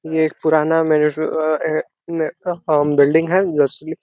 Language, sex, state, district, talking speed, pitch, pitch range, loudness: Hindi, male, Uttar Pradesh, Deoria, 120 wpm, 155 Hz, 155-160 Hz, -18 LUFS